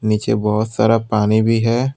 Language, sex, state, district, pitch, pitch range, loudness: Hindi, male, Tripura, West Tripura, 110 Hz, 105-115 Hz, -16 LUFS